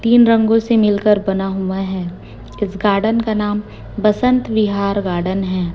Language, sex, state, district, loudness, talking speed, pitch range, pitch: Hindi, female, Chhattisgarh, Raipur, -16 LUFS, 155 wpm, 195-220 Hz, 205 Hz